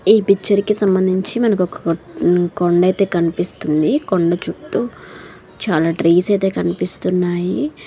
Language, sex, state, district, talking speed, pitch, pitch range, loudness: Telugu, female, Andhra Pradesh, Srikakulam, 100 wpm, 180 Hz, 170-200 Hz, -17 LUFS